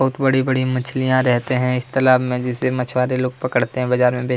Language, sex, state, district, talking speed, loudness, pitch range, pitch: Hindi, male, Chhattisgarh, Kabirdham, 205 wpm, -19 LUFS, 125-130 Hz, 130 Hz